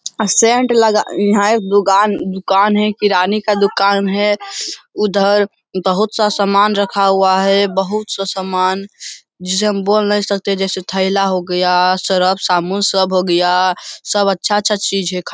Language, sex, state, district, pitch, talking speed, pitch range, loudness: Hindi, male, Bihar, Jamui, 200 Hz, 165 wpm, 190-210 Hz, -14 LUFS